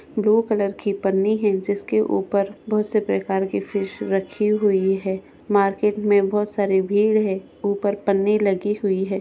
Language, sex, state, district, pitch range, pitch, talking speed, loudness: Hindi, female, Goa, North and South Goa, 195-210 Hz, 200 Hz, 170 wpm, -21 LUFS